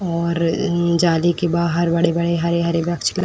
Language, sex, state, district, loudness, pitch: Hindi, female, Uttar Pradesh, Etah, -18 LUFS, 170 Hz